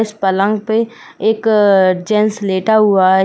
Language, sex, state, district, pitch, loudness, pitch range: Hindi, female, Uttar Pradesh, Jyotiba Phule Nagar, 210 Hz, -14 LUFS, 190-220 Hz